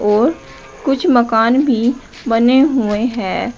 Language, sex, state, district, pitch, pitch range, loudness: Hindi, female, Uttar Pradesh, Shamli, 240 Hz, 225-260 Hz, -14 LUFS